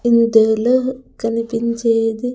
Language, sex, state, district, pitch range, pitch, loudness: Telugu, female, Andhra Pradesh, Sri Satya Sai, 225-245 Hz, 230 Hz, -17 LUFS